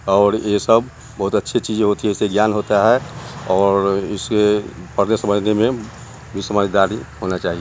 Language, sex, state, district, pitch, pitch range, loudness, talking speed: Hindi, male, Bihar, Muzaffarpur, 105 Hz, 100-110 Hz, -18 LUFS, 165 wpm